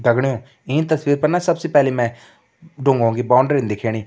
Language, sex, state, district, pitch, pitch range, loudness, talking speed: Kumaoni, male, Uttarakhand, Tehri Garhwal, 135 Hz, 120-150 Hz, -18 LUFS, 175 wpm